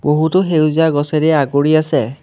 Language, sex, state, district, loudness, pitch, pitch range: Assamese, male, Assam, Kamrup Metropolitan, -14 LUFS, 155 Hz, 145-160 Hz